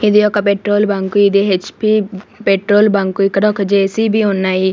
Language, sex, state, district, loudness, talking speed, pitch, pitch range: Telugu, female, Andhra Pradesh, Sri Satya Sai, -14 LUFS, 150 wpm, 200 Hz, 195-210 Hz